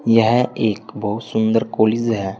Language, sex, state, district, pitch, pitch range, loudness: Hindi, male, Uttar Pradesh, Saharanpur, 110 Hz, 110-115 Hz, -18 LUFS